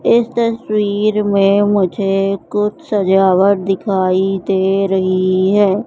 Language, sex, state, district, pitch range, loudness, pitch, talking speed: Hindi, female, Madhya Pradesh, Katni, 190-210 Hz, -14 LUFS, 195 Hz, 100 wpm